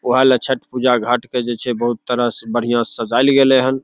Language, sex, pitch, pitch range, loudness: Maithili, male, 125 Hz, 120-130 Hz, -17 LUFS